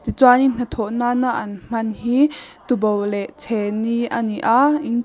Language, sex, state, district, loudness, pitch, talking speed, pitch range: Mizo, female, Mizoram, Aizawl, -19 LUFS, 235 Hz, 140 wpm, 215-250 Hz